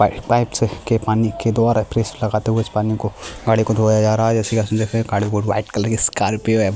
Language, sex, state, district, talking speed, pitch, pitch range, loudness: Hindi, male, Chhattisgarh, Kabirdham, 220 wpm, 110 Hz, 105-115 Hz, -18 LUFS